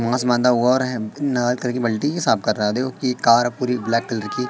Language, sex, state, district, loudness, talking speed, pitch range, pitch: Hindi, male, Madhya Pradesh, Katni, -20 LUFS, 160 wpm, 115-125 Hz, 125 Hz